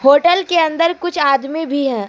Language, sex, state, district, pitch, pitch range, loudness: Hindi, female, Jharkhand, Deoghar, 310 Hz, 280-340 Hz, -15 LUFS